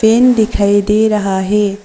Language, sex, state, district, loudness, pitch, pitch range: Hindi, female, Arunachal Pradesh, Papum Pare, -12 LUFS, 210 Hz, 200-220 Hz